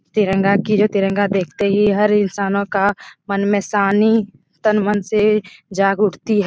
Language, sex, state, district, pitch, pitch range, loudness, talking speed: Hindi, female, Bihar, Jahanabad, 205 Hz, 195-210 Hz, -17 LUFS, 160 wpm